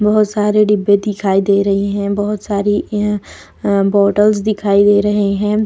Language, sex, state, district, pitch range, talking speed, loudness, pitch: Hindi, female, Bihar, Vaishali, 200-210 Hz, 170 wpm, -14 LUFS, 205 Hz